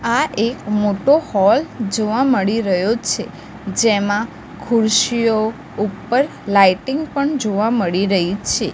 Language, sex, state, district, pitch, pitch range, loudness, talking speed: Gujarati, female, Gujarat, Gandhinagar, 220 Hz, 205-240 Hz, -17 LUFS, 115 wpm